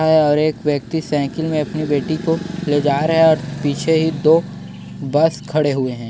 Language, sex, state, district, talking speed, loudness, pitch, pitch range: Hindi, male, Chhattisgarh, Korba, 195 wpm, -17 LUFS, 155 Hz, 145-160 Hz